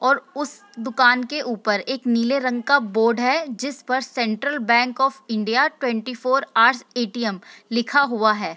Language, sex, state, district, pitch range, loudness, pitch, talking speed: Hindi, female, Bihar, Sitamarhi, 230-270 Hz, -21 LUFS, 245 Hz, 170 wpm